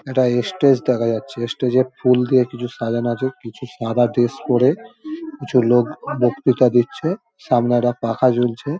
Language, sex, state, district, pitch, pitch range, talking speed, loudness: Bengali, male, West Bengal, Dakshin Dinajpur, 125 Hz, 120-135 Hz, 145 wpm, -18 LUFS